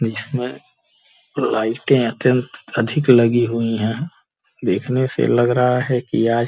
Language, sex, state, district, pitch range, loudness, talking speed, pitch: Hindi, male, Uttar Pradesh, Gorakhpur, 115-125 Hz, -18 LUFS, 140 wpm, 120 Hz